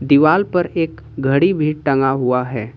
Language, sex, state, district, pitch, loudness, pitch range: Hindi, male, Jharkhand, Ranchi, 140 Hz, -17 LUFS, 130-160 Hz